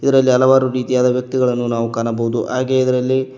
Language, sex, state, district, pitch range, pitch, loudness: Kannada, male, Karnataka, Koppal, 120-130 Hz, 125 Hz, -16 LUFS